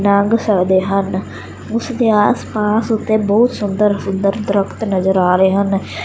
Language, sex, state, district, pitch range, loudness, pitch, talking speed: Punjabi, male, Punjab, Fazilka, 195-215 Hz, -15 LUFS, 200 Hz, 160 wpm